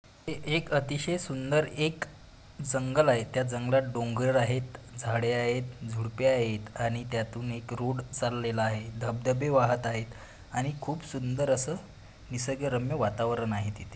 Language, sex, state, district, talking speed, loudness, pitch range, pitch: Marathi, male, Maharashtra, Pune, 135 wpm, -30 LUFS, 115-135 Hz, 125 Hz